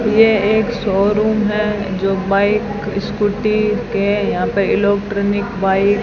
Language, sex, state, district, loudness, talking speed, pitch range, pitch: Hindi, female, Rajasthan, Bikaner, -16 LUFS, 130 wpm, 200-215 Hz, 205 Hz